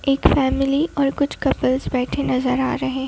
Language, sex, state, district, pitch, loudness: Hindi, female, Madhya Pradesh, Bhopal, 265 Hz, -20 LUFS